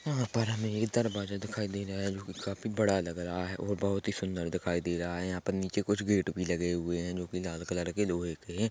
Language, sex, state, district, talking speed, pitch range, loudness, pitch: Hindi, male, Chhattisgarh, Korba, 275 wpm, 90-105 Hz, -33 LUFS, 95 Hz